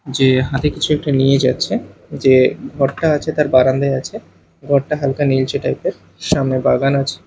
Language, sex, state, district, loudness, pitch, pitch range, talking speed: Bengali, male, Odisha, Malkangiri, -16 LUFS, 140 Hz, 135-150 Hz, 165 wpm